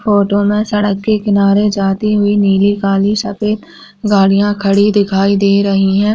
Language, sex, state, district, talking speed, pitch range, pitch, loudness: Hindi, female, Uttarakhand, Tehri Garhwal, 155 wpm, 200-210 Hz, 205 Hz, -12 LUFS